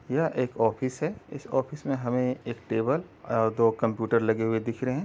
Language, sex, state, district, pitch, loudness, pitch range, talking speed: Hindi, male, Uttar Pradesh, Deoria, 120 Hz, -28 LUFS, 115-130 Hz, 215 wpm